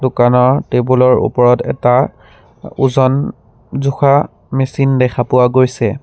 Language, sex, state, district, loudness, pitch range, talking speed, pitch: Assamese, male, Assam, Sonitpur, -13 LUFS, 125-135 Hz, 110 wpm, 130 Hz